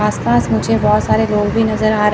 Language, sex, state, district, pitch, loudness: Hindi, female, Chandigarh, Chandigarh, 205 Hz, -15 LUFS